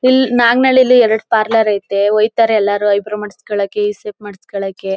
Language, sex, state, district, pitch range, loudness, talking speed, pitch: Kannada, female, Karnataka, Mysore, 205-230 Hz, -13 LUFS, 145 wpm, 210 Hz